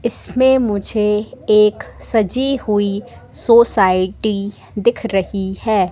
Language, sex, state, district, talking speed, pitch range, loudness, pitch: Hindi, female, Madhya Pradesh, Katni, 90 wpm, 200-235 Hz, -16 LUFS, 210 Hz